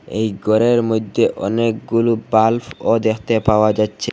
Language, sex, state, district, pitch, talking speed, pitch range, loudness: Bengali, male, Assam, Hailakandi, 110 Hz, 115 wpm, 110-115 Hz, -17 LUFS